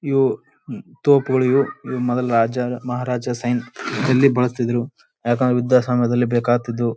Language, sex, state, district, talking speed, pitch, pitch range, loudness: Kannada, male, Karnataka, Bijapur, 120 wpm, 125 Hz, 120-130 Hz, -19 LUFS